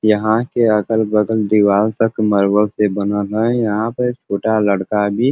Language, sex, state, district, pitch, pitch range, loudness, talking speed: Bhojpuri, male, Uttar Pradesh, Varanasi, 105 Hz, 105-110 Hz, -16 LUFS, 170 wpm